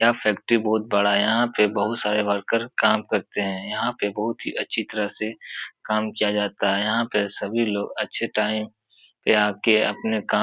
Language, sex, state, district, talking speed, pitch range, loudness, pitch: Hindi, male, Uttar Pradesh, Etah, 200 wpm, 105-110 Hz, -23 LUFS, 105 Hz